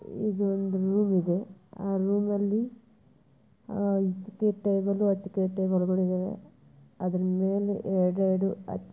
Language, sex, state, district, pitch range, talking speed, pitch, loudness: Kannada, female, Karnataka, Bijapur, 185-205 Hz, 45 wpm, 195 Hz, -28 LUFS